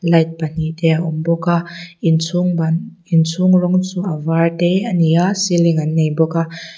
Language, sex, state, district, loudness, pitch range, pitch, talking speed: Mizo, female, Mizoram, Aizawl, -16 LUFS, 160-180 Hz, 170 Hz, 220 wpm